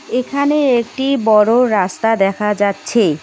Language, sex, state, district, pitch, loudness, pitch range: Bengali, female, West Bengal, Cooch Behar, 225 Hz, -15 LUFS, 205-255 Hz